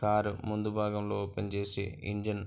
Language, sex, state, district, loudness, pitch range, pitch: Telugu, male, Andhra Pradesh, Anantapur, -34 LUFS, 100-105 Hz, 105 Hz